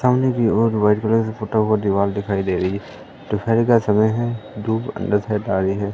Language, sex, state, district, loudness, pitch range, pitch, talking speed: Hindi, male, Madhya Pradesh, Katni, -19 LUFS, 100-115 Hz, 110 Hz, 235 wpm